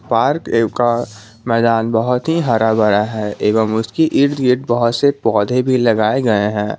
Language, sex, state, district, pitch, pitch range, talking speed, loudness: Hindi, male, Jharkhand, Garhwa, 115 Hz, 110-125 Hz, 170 wpm, -15 LUFS